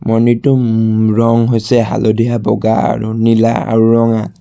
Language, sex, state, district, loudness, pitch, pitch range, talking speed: Assamese, male, Assam, Sonitpur, -12 LUFS, 115 Hz, 110-115 Hz, 135 wpm